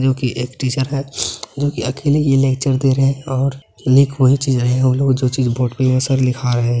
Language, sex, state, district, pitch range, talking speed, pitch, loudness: Maithili, male, Bihar, Begusarai, 125-135 Hz, 165 wpm, 130 Hz, -17 LUFS